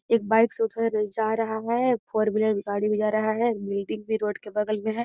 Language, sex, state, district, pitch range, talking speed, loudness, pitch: Magahi, female, Bihar, Gaya, 210-225 Hz, 250 wpm, -25 LUFS, 220 Hz